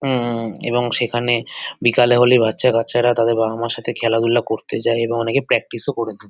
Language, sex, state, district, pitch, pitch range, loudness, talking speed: Bengali, male, West Bengal, North 24 Parganas, 115 Hz, 115-120 Hz, -18 LUFS, 150 wpm